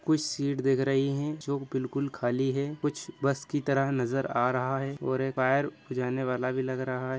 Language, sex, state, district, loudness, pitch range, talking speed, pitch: Hindi, male, Chhattisgarh, Kabirdham, -29 LUFS, 130-140 Hz, 165 wpm, 135 Hz